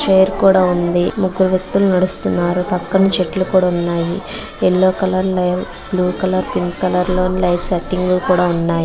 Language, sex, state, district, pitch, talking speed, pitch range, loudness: Telugu, female, Andhra Pradesh, Visakhapatnam, 185 Hz, 140 wpm, 180-185 Hz, -16 LUFS